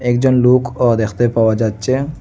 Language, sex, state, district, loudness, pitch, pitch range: Bengali, male, Assam, Hailakandi, -15 LUFS, 120 Hz, 115-130 Hz